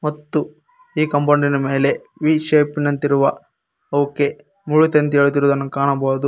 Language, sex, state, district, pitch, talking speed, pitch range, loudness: Kannada, male, Karnataka, Koppal, 145 Hz, 105 wpm, 140-150 Hz, -18 LUFS